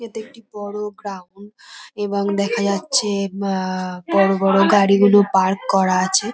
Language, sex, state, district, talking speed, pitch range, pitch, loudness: Bengali, female, West Bengal, North 24 Parganas, 135 wpm, 195-205 Hz, 200 Hz, -18 LUFS